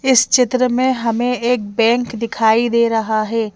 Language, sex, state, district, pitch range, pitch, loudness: Hindi, female, Madhya Pradesh, Bhopal, 225-250 Hz, 235 Hz, -16 LUFS